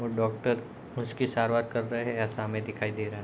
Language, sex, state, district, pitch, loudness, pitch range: Hindi, male, Bihar, Gopalganj, 115 Hz, -31 LUFS, 110-120 Hz